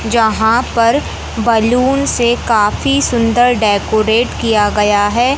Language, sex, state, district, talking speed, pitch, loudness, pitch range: Hindi, male, Madhya Pradesh, Katni, 110 wpm, 230 Hz, -13 LUFS, 215-240 Hz